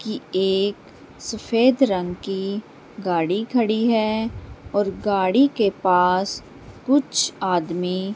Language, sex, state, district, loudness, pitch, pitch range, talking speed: Hindi, female, Bihar, Sitamarhi, -21 LUFS, 200 Hz, 185-225 Hz, 110 wpm